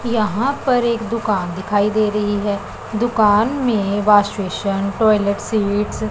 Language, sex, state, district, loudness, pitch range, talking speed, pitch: Hindi, male, Punjab, Pathankot, -18 LUFS, 200-225 Hz, 135 wpm, 210 Hz